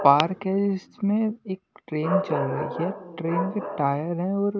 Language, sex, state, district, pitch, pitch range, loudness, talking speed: Hindi, male, Maharashtra, Washim, 185 Hz, 160-200 Hz, -26 LUFS, 170 wpm